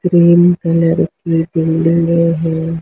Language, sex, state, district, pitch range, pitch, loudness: Hindi, female, Maharashtra, Mumbai Suburban, 165-170 Hz, 165 Hz, -13 LUFS